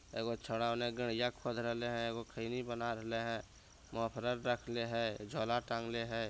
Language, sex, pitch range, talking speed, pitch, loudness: Bhojpuri, male, 115-120 Hz, 145 wpm, 115 Hz, -39 LUFS